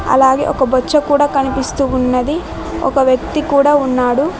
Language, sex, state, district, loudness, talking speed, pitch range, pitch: Telugu, female, Telangana, Mahabubabad, -14 LUFS, 135 wpm, 260-290 Hz, 270 Hz